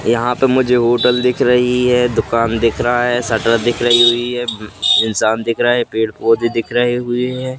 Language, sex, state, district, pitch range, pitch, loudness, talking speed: Hindi, male, Madhya Pradesh, Katni, 115-125 Hz, 120 Hz, -14 LUFS, 205 wpm